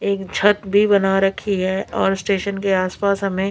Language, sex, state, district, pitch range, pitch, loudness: Hindi, female, Bihar, Patna, 190-200 Hz, 195 Hz, -19 LUFS